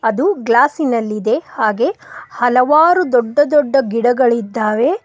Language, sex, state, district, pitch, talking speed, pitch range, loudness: Kannada, female, Karnataka, Koppal, 250 Hz, 95 wpm, 230-300 Hz, -14 LUFS